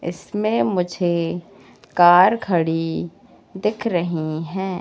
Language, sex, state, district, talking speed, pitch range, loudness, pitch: Hindi, female, Madhya Pradesh, Katni, 85 wpm, 170-190 Hz, -20 LUFS, 175 Hz